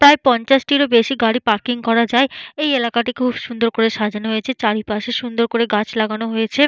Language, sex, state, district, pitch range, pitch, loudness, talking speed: Bengali, female, West Bengal, Dakshin Dinajpur, 225-255 Hz, 235 Hz, -17 LUFS, 190 wpm